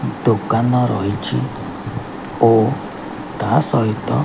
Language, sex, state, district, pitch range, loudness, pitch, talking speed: Odia, male, Odisha, Khordha, 105-120 Hz, -18 LUFS, 115 Hz, 85 wpm